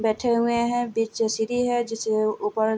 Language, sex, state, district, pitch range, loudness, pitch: Hindi, female, Bihar, Vaishali, 220-235 Hz, -24 LUFS, 225 Hz